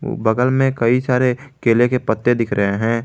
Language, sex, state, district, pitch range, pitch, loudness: Hindi, male, Jharkhand, Garhwa, 115-125 Hz, 120 Hz, -17 LUFS